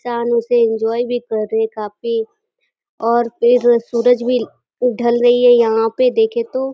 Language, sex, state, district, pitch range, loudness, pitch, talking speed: Hindi, female, Uttar Pradesh, Deoria, 230-250 Hz, -16 LUFS, 240 Hz, 170 wpm